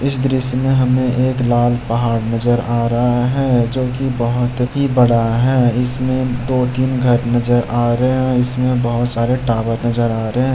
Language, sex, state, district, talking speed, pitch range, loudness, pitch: Hindi, male, Bihar, Jamui, 185 wpm, 120-130 Hz, -16 LUFS, 125 Hz